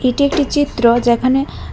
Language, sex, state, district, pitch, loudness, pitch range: Bengali, female, Tripura, West Tripura, 260 Hz, -15 LUFS, 240-285 Hz